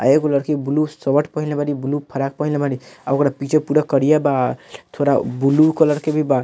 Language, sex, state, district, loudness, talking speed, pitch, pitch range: Bhojpuri, male, Bihar, Muzaffarpur, -18 LUFS, 215 wpm, 145 Hz, 135-150 Hz